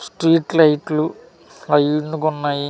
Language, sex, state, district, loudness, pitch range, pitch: Telugu, male, Andhra Pradesh, Manyam, -18 LUFS, 145-160 Hz, 155 Hz